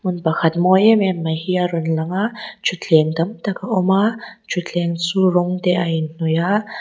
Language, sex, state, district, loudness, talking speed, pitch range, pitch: Mizo, female, Mizoram, Aizawl, -18 LUFS, 220 wpm, 165-195 Hz, 180 Hz